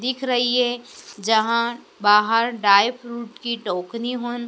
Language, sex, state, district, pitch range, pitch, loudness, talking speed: Hindi, female, Madhya Pradesh, Dhar, 220-245 Hz, 235 Hz, -20 LUFS, 135 wpm